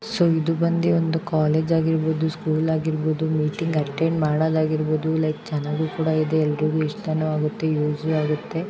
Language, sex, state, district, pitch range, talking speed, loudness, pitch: Kannada, female, Karnataka, Bijapur, 155-160 Hz, 140 wpm, -22 LUFS, 155 Hz